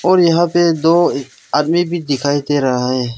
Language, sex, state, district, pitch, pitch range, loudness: Hindi, male, Arunachal Pradesh, Lower Dibang Valley, 150 Hz, 135-170 Hz, -15 LUFS